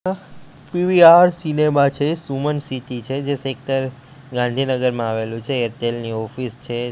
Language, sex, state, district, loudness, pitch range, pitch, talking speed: Gujarati, male, Gujarat, Gandhinagar, -19 LUFS, 120-150 Hz, 135 Hz, 140 wpm